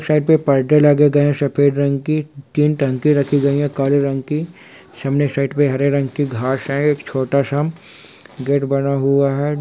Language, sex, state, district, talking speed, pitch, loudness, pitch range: Hindi, male, Bihar, Sitamarhi, 210 wpm, 140 Hz, -17 LUFS, 140-150 Hz